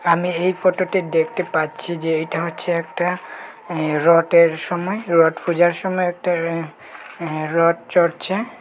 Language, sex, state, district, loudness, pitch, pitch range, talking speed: Bengali, male, Tripura, Unakoti, -19 LUFS, 170 Hz, 165-180 Hz, 140 wpm